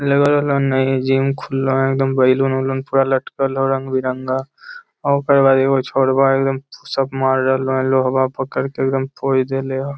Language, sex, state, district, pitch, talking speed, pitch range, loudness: Magahi, male, Bihar, Lakhisarai, 135 Hz, 185 wpm, 130-135 Hz, -17 LUFS